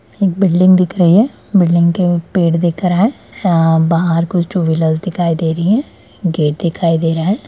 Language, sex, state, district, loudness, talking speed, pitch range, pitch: Hindi, female, Bihar, Darbhanga, -14 LUFS, 200 wpm, 165-185 Hz, 175 Hz